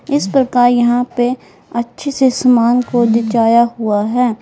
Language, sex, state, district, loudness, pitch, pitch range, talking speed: Hindi, female, Uttar Pradesh, Lalitpur, -14 LUFS, 240 Hz, 235-250 Hz, 150 wpm